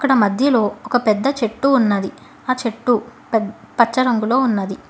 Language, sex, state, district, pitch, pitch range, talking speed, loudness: Telugu, female, Telangana, Hyderabad, 235 Hz, 215-255 Hz, 145 wpm, -18 LUFS